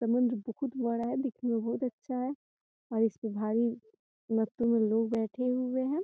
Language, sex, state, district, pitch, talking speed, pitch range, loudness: Hindi, female, Bihar, Gopalganj, 235 Hz, 180 wpm, 225-255 Hz, -32 LUFS